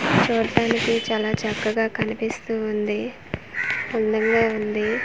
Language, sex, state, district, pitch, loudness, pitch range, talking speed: Telugu, female, Andhra Pradesh, Manyam, 220 Hz, -23 LUFS, 215-225 Hz, 85 wpm